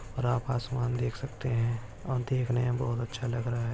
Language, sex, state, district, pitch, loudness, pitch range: Hindi, male, Maharashtra, Dhule, 120 Hz, -31 LUFS, 120-125 Hz